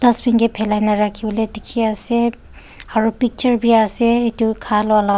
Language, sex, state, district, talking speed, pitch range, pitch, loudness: Nagamese, female, Nagaland, Dimapur, 160 wpm, 215-235 Hz, 225 Hz, -17 LUFS